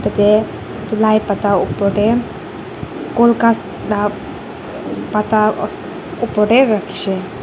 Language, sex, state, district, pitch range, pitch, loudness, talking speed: Nagamese, female, Nagaland, Dimapur, 200-220 Hz, 210 Hz, -16 LUFS, 120 wpm